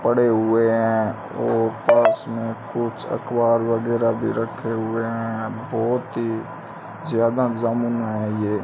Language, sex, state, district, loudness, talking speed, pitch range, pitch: Hindi, male, Rajasthan, Bikaner, -22 LUFS, 130 wpm, 110-120 Hz, 115 Hz